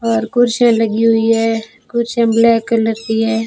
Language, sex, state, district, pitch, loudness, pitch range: Hindi, female, Rajasthan, Jaisalmer, 225 Hz, -14 LUFS, 225-230 Hz